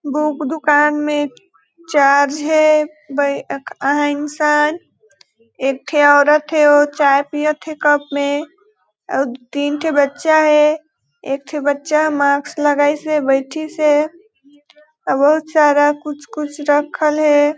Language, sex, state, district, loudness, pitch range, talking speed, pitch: Hindi, female, Chhattisgarh, Balrampur, -15 LUFS, 285-305 Hz, 130 wpm, 295 Hz